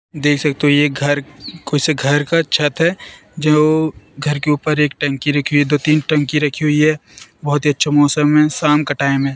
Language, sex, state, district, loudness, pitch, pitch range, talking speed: Hindi, female, Madhya Pradesh, Katni, -15 LUFS, 150 Hz, 145-150 Hz, 225 wpm